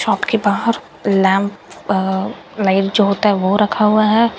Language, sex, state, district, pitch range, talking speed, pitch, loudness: Hindi, female, Bihar, Katihar, 195-215 Hz, 180 wpm, 205 Hz, -16 LUFS